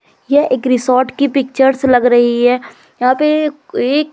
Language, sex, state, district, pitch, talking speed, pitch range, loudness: Hindi, female, Madhya Pradesh, Umaria, 265 Hz, 160 wpm, 250-290 Hz, -13 LUFS